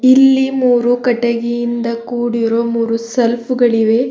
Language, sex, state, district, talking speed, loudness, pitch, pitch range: Kannada, female, Karnataka, Bidar, 100 wpm, -14 LUFS, 240 Hz, 235-245 Hz